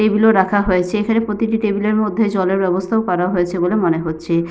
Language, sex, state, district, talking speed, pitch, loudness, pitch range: Bengali, female, Jharkhand, Sahebganj, 215 wpm, 195 Hz, -17 LUFS, 180-215 Hz